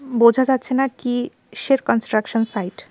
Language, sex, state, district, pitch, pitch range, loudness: Bengali, female, Tripura, West Tripura, 245 Hz, 225-265 Hz, -19 LUFS